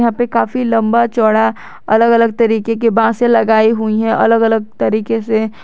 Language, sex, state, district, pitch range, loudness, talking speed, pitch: Hindi, male, Jharkhand, Garhwa, 220-230 Hz, -13 LUFS, 170 wpm, 225 Hz